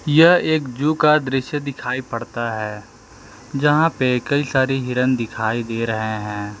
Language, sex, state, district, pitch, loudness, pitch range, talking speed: Hindi, male, Jharkhand, Palamu, 125 Hz, -19 LUFS, 115-145 Hz, 155 wpm